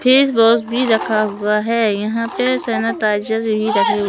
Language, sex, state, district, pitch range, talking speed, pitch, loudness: Hindi, male, Madhya Pradesh, Katni, 215-230 Hz, 160 wpm, 225 Hz, -16 LUFS